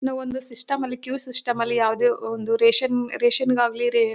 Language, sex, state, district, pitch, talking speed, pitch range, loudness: Kannada, female, Karnataka, Bellary, 250 Hz, 175 wpm, 235-260 Hz, -22 LUFS